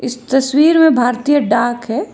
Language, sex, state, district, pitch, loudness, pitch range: Hindi, female, Karnataka, Bangalore, 250 Hz, -13 LUFS, 240-290 Hz